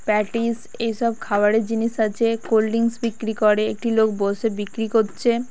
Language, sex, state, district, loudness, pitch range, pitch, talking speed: Bengali, female, West Bengal, Kolkata, -21 LUFS, 215-230 Hz, 225 Hz, 155 wpm